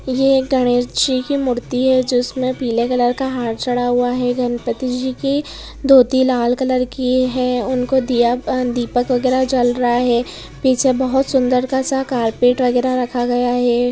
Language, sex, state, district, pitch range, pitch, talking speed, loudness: Hindi, female, Maharashtra, Pune, 245-260 Hz, 250 Hz, 170 wpm, -17 LUFS